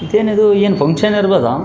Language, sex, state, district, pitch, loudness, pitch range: Kannada, male, Karnataka, Raichur, 205 Hz, -13 LUFS, 195-210 Hz